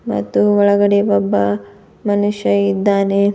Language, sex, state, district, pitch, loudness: Kannada, female, Karnataka, Bidar, 195 Hz, -15 LUFS